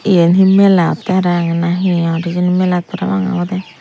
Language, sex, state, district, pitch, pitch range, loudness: Chakma, female, Tripura, Unakoti, 180 Hz, 175-190 Hz, -14 LUFS